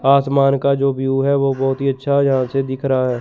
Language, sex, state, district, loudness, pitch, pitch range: Hindi, male, Chandigarh, Chandigarh, -17 LUFS, 135 Hz, 135-140 Hz